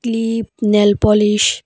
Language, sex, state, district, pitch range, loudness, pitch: Bengali, female, Tripura, West Tripura, 210-225 Hz, -15 LUFS, 210 Hz